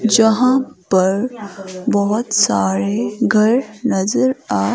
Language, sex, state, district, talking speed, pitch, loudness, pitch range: Hindi, female, Himachal Pradesh, Shimla, 90 wpm, 215 Hz, -16 LUFS, 195-245 Hz